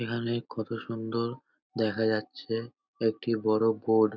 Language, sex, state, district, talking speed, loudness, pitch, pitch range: Bengali, male, West Bengal, North 24 Parganas, 130 wpm, -30 LUFS, 115 Hz, 110-115 Hz